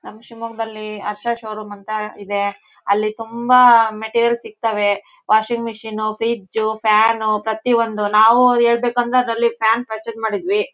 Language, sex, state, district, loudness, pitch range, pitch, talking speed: Kannada, female, Karnataka, Shimoga, -18 LUFS, 215-235 Hz, 225 Hz, 115 wpm